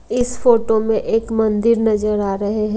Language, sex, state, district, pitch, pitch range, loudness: Hindi, female, Punjab, Kapurthala, 220 Hz, 210-230 Hz, -17 LUFS